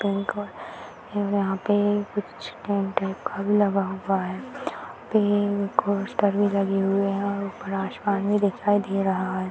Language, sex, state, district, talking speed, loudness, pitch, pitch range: Hindi, female, Bihar, Purnia, 130 wpm, -25 LUFS, 200 Hz, 195-205 Hz